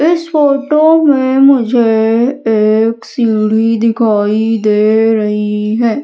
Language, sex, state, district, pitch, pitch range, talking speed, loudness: Hindi, female, Madhya Pradesh, Umaria, 225 Hz, 220-270 Hz, 100 wpm, -11 LUFS